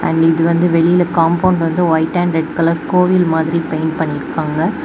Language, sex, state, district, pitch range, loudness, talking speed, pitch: Tamil, female, Tamil Nadu, Kanyakumari, 160-175 Hz, -14 LUFS, 175 wpm, 165 Hz